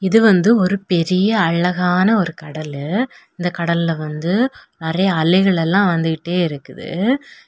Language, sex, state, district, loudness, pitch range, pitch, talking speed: Tamil, female, Tamil Nadu, Kanyakumari, -17 LUFS, 165-200 Hz, 180 Hz, 110 wpm